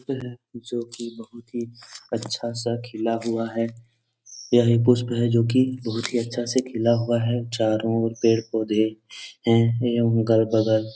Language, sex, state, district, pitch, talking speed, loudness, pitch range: Hindi, male, Uttar Pradesh, Etah, 115 Hz, 175 wpm, -23 LUFS, 115-120 Hz